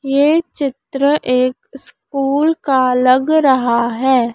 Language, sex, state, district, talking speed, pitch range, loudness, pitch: Hindi, female, Madhya Pradesh, Dhar, 110 wpm, 255-285 Hz, -15 LUFS, 270 Hz